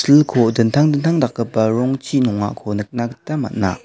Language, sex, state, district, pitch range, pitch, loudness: Garo, male, Meghalaya, West Garo Hills, 110-145 Hz, 120 Hz, -18 LUFS